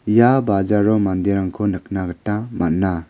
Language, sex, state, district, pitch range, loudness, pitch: Garo, male, Meghalaya, West Garo Hills, 95-105 Hz, -19 LUFS, 100 Hz